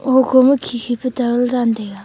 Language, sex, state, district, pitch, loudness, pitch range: Wancho, female, Arunachal Pradesh, Longding, 245 Hz, -16 LUFS, 240-260 Hz